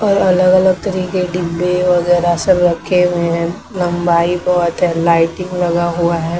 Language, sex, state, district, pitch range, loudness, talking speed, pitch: Hindi, female, Maharashtra, Mumbai Suburban, 170-180 Hz, -14 LUFS, 150 wpm, 175 Hz